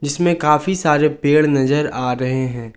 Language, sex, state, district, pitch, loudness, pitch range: Hindi, male, Jharkhand, Garhwa, 145 Hz, -17 LUFS, 130-150 Hz